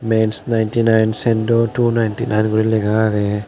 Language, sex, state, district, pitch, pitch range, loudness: Chakma, male, Tripura, West Tripura, 110 Hz, 110-115 Hz, -17 LUFS